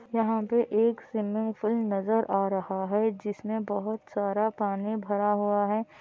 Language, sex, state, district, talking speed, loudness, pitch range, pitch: Hindi, female, Andhra Pradesh, Anantapur, 160 wpm, -28 LUFS, 205-220 Hz, 215 Hz